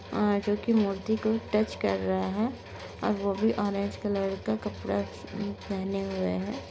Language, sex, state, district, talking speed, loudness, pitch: Hindi, female, Maharashtra, Nagpur, 160 wpm, -29 LUFS, 200 Hz